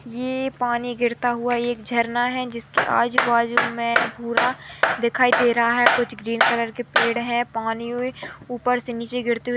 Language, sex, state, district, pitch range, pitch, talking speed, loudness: Hindi, female, Uttarakhand, Tehri Garhwal, 235-245 Hz, 240 Hz, 180 wpm, -21 LUFS